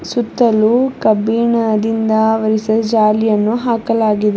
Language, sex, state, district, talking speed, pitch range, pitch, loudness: Kannada, female, Karnataka, Bidar, 70 wpm, 215-230 Hz, 220 Hz, -14 LUFS